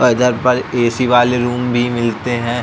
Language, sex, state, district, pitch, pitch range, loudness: Hindi, male, Uttar Pradesh, Jalaun, 120 Hz, 120-125 Hz, -15 LUFS